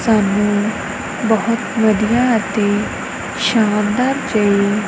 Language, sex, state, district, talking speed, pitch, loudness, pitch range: Punjabi, female, Punjab, Kapurthala, 75 wpm, 215 Hz, -16 LUFS, 205-230 Hz